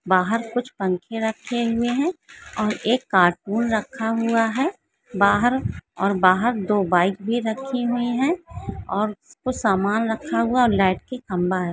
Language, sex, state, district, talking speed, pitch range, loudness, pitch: Hindi, female, Maharashtra, Solapur, 150 wpm, 195-245 Hz, -22 LUFS, 225 Hz